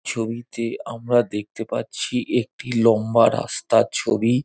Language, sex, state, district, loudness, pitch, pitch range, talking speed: Bengali, male, West Bengal, Dakshin Dinajpur, -22 LUFS, 115 Hz, 115-120 Hz, 120 wpm